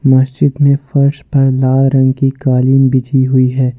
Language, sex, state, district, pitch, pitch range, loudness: Hindi, male, Jharkhand, Ranchi, 135 Hz, 130-140 Hz, -12 LUFS